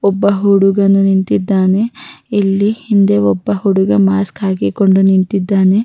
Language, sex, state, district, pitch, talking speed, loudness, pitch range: Kannada, female, Karnataka, Raichur, 195 Hz, 115 wpm, -13 LUFS, 190-200 Hz